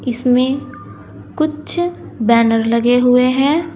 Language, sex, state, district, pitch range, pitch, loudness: Hindi, female, Uttar Pradesh, Saharanpur, 240-305 Hz, 250 Hz, -15 LUFS